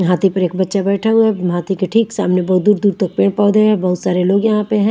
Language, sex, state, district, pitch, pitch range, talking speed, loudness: Hindi, female, Haryana, Charkhi Dadri, 195 Hz, 185-210 Hz, 295 wpm, -15 LUFS